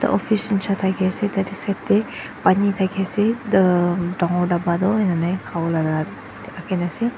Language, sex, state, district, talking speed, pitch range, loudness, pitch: Nagamese, female, Nagaland, Dimapur, 140 wpm, 175-200 Hz, -21 LUFS, 190 Hz